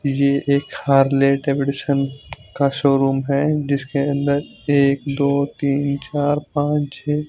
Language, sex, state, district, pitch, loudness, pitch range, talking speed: Hindi, male, Punjab, Fazilka, 140 Hz, -19 LUFS, 140-145 Hz, 125 wpm